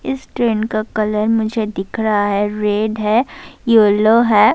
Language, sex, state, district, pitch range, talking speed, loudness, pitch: Urdu, female, Bihar, Saharsa, 210-225 Hz, 160 wpm, -16 LUFS, 215 Hz